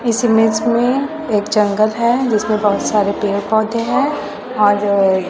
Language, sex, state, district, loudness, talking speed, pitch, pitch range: Hindi, female, Chhattisgarh, Raipur, -16 LUFS, 145 wpm, 220 Hz, 205-235 Hz